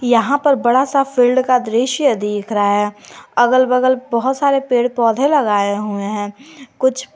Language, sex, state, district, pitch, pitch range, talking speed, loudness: Hindi, female, Jharkhand, Garhwa, 250 Hz, 215-265 Hz, 170 wpm, -16 LUFS